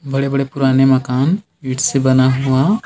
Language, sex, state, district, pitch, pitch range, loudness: Hindi, male, Chhattisgarh, Bilaspur, 135 Hz, 130-140 Hz, -15 LUFS